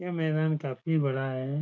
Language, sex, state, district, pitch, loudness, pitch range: Hindi, male, Bihar, Saran, 150 Hz, -29 LUFS, 135-160 Hz